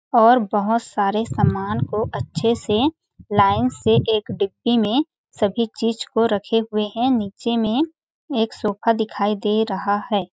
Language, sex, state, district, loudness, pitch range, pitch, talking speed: Hindi, female, Chhattisgarh, Balrampur, -20 LUFS, 210-235 Hz, 225 Hz, 155 wpm